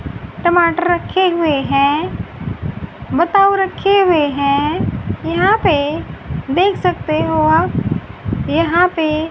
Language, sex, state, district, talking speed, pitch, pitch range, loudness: Hindi, female, Haryana, Rohtak, 105 wpm, 335 Hz, 310-370 Hz, -16 LUFS